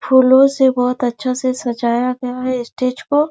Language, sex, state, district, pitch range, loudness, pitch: Hindi, female, Chhattisgarh, Raigarh, 245-260 Hz, -16 LUFS, 255 Hz